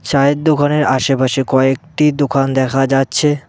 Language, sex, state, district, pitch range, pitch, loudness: Bengali, male, West Bengal, Cooch Behar, 135-150 Hz, 135 Hz, -14 LUFS